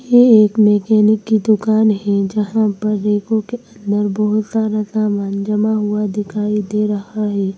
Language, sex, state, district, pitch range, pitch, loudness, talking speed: Hindi, female, Madhya Pradesh, Bhopal, 205-215 Hz, 210 Hz, -16 LUFS, 160 wpm